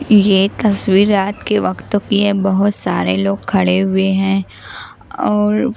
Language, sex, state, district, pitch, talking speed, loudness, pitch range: Hindi, female, Bihar, Katihar, 195 Hz, 145 wpm, -15 LUFS, 190-210 Hz